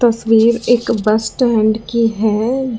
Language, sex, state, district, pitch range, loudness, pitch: Hindi, female, Karnataka, Bangalore, 220-240 Hz, -14 LUFS, 225 Hz